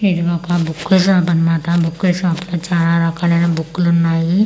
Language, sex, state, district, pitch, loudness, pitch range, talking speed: Telugu, female, Andhra Pradesh, Manyam, 170 Hz, -16 LUFS, 165-180 Hz, 160 wpm